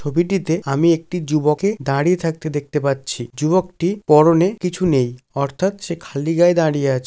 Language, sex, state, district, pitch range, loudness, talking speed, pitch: Bengali, male, West Bengal, Jalpaiguri, 140-175 Hz, -18 LUFS, 160 wpm, 160 Hz